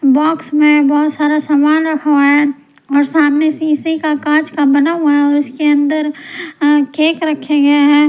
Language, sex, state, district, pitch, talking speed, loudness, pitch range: Hindi, female, Punjab, Pathankot, 295 Hz, 170 wpm, -13 LUFS, 290-310 Hz